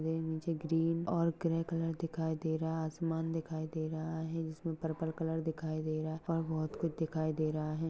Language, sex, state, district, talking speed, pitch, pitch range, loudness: Hindi, male, Maharashtra, Pune, 230 wpm, 160 Hz, 160-165 Hz, -36 LUFS